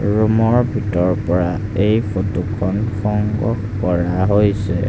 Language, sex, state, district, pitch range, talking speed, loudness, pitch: Assamese, male, Assam, Sonitpur, 95-105 Hz, 100 wpm, -18 LUFS, 105 Hz